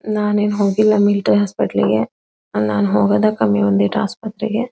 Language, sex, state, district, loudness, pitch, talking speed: Kannada, female, Karnataka, Belgaum, -17 LUFS, 205 Hz, 115 wpm